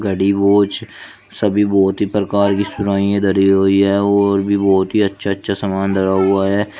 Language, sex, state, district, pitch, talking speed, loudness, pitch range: Hindi, male, Uttar Pradesh, Shamli, 100 Hz, 185 wpm, -15 LUFS, 95-100 Hz